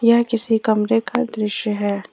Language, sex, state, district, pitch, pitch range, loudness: Hindi, female, Jharkhand, Ranchi, 225 Hz, 210-235 Hz, -20 LUFS